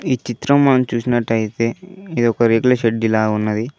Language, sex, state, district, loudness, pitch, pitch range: Telugu, male, Telangana, Mahabubabad, -17 LUFS, 120 Hz, 115-130 Hz